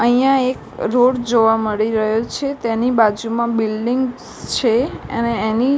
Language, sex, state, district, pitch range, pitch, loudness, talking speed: Gujarati, female, Gujarat, Gandhinagar, 225-250 Hz, 235 Hz, -18 LUFS, 135 wpm